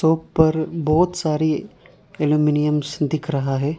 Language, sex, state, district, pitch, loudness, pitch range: Hindi, male, Arunachal Pradesh, Lower Dibang Valley, 155 Hz, -20 LUFS, 150-160 Hz